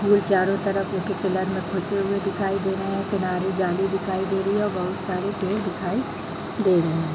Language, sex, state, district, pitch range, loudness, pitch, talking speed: Hindi, female, Bihar, East Champaran, 185-195 Hz, -24 LUFS, 195 Hz, 220 wpm